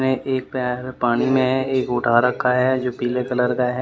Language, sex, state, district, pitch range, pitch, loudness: Hindi, male, Haryana, Jhajjar, 125-130 Hz, 125 Hz, -20 LUFS